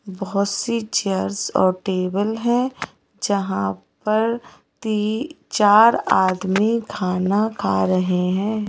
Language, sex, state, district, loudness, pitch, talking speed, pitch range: Hindi, female, Madhya Pradesh, Bhopal, -20 LUFS, 200 Hz, 105 wpm, 185-220 Hz